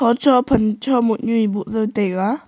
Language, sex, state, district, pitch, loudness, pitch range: Wancho, female, Arunachal Pradesh, Longding, 225 Hz, -18 LUFS, 210-245 Hz